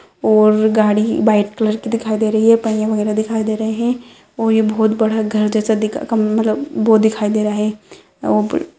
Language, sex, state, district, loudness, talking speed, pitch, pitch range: Hindi, female, Rajasthan, Nagaur, -16 LUFS, 205 wpm, 220 Hz, 215-225 Hz